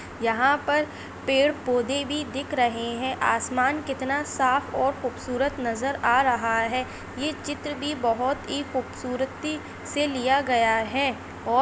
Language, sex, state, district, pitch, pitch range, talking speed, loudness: Hindi, female, Uttar Pradesh, Etah, 265 Hz, 250-285 Hz, 140 wpm, -25 LUFS